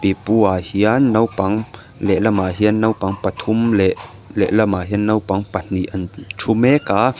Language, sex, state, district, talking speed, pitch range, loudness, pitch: Mizo, male, Mizoram, Aizawl, 135 wpm, 95-110 Hz, -17 LUFS, 105 Hz